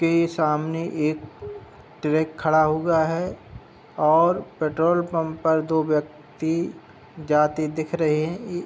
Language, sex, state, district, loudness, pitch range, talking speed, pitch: Hindi, male, Uttar Pradesh, Hamirpur, -23 LUFS, 155-165 Hz, 120 wpm, 160 Hz